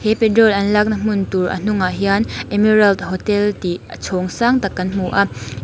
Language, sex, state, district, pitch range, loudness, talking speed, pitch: Mizo, female, Mizoram, Aizawl, 185-215 Hz, -17 LUFS, 200 wpm, 200 Hz